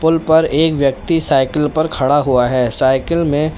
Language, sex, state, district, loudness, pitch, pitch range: Hindi, male, Uttar Pradesh, Lalitpur, -14 LUFS, 150 Hz, 130-160 Hz